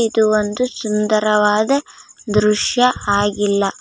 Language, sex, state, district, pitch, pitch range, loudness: Kannada, female, Karnataka, Raichur, 215 Hz, 210-230 Hz, -16 LUFS